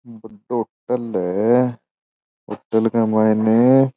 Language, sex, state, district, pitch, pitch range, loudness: Marwari, male, Rajasthan, Churu, 115 Hz, 110-120 Hz, -18 LUFS